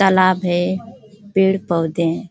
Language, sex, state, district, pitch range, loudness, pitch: Hindi, female, Uttar Pradesh, Ghazipur, 175-195 Hz, -18 LUFS, 185 Hz